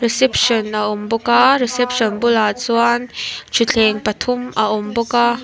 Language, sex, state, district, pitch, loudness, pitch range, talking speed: Mizo, female, Mizoram, Aizawl, 235 Hz, -16 LUFS, 215-245 Hz, 155 wpm